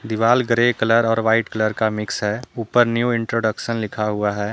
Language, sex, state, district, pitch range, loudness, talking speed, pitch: Hindi, male, Jharkhand, Deoghar, 110-115 Hz, -19 LUFS, 200 wpm, 115 Hz